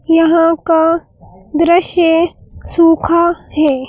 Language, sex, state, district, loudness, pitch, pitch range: Hindi, female, Madhya Pradesh, Bhopal, -12 LUFS, 330 Hz, 325-340 Hz